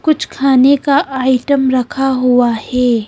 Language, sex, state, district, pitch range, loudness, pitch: Hindi, female, Madhya Pradesh, Bhopal, 250-280 Hz, -13 LUFS, 260 Hz